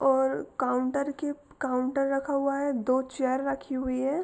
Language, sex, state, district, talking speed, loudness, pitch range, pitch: Hindi, female, Uttar Pradesh, Jalaun, 170 wpm, -29 LUFS, 260-280 Hz, 270 Hz